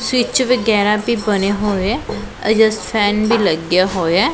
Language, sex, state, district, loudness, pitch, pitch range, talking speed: Punjabi, female, Punjab, Pathankot, -16 LUFS, 210 Hz, 195-225 Hz, 165 wpm